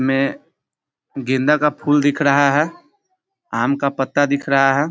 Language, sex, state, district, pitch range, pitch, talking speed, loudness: Hindi, male, Bihar, Muzaffarpur, 135-150 Hz, 145 Hz, 160 wpm, -17 LUFS